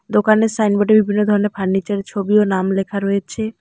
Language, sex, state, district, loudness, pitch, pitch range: Bengali, female, West Bengal, Alipurduar, -17 LUFS, 205 Hz, 195-215 Hz